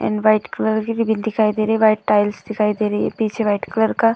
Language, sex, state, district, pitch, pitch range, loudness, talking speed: Hindi, female, Uttar Pradesh, Hamirpur, 215 Hz, 210-220 Hz, -18 LUFS, 290 wpm